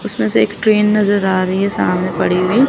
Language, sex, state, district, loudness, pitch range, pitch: Hindi, female, Chandigarh, Chandigarh, -15 LUFS, 180-210 Hz, 190 Hz